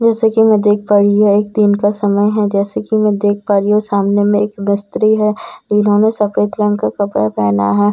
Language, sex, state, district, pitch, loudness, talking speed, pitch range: Hindi, female, Bihar, Katihar, 205 Hz, -13 LUFS, 235 wpm, 200-210 Hz